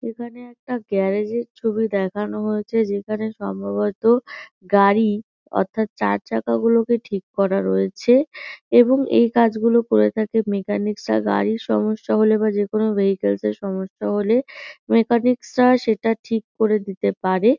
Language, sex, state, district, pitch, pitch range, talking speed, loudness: Bengali, female, West Bengal, North 24 Parganas, 215 Hz, 195-230 Hz, 115 wpm, -20 LUFS